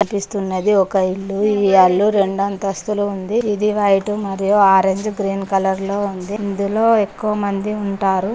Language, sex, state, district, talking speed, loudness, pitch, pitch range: Telugu, female, Telangana, Karimnagar, 145 wpm, -17 LUFS, 200 Hz, 195-210 Hz